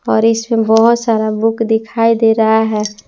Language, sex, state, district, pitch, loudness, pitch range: Hindi, female, Jharkhand, Palamu, 225 Hz, -13 LUFS, 220-230 Hz